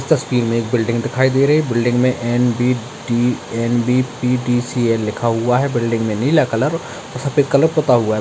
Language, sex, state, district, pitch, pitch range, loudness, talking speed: Hindi, male, Bihar, Madhepura, 120 Hz, 115-130 Hz, -17 LUFS, 190 wpm